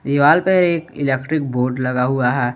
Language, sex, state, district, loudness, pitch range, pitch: Hindi, male, Jharkhand, Garhwa, -17 LUFS, 125-155 Hz, 135 Hz